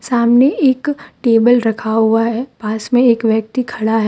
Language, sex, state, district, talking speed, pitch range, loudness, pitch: Hindi, female, Jharkhand, Deoghar, 175 wpm, 220-250 Hz, -14 LUFS, 235 Hz